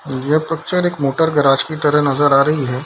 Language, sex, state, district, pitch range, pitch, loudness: Hindi, male, Bihar, Darbhanga, 140-155 Hz, 145 Hz, -16 LUFS